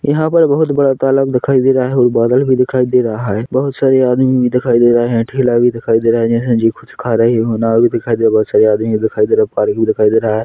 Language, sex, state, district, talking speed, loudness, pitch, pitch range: Hindi, male, Chhattisgarh, Korba, 305 wpm, -13 LUFS, 120 Hz, 115-130 Hz